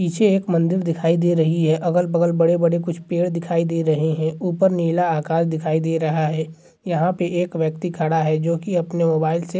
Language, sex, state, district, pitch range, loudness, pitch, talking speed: Hindi, male, Bihar, Gaya, 160-175 Hz, -20 LUFS, 170 Hz, 210 wpm